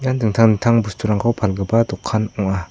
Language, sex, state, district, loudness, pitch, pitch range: Garo, male, Meghalaya, South Garo Hills, -18 LUFS, 110 Hz, 100-115 Hz